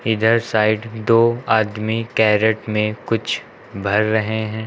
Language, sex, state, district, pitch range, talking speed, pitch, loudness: Hindi, male, Uttar Pradesh, Lucknow, 110-115 Hz, 130 wpm, 110 Hz, -18 LUFS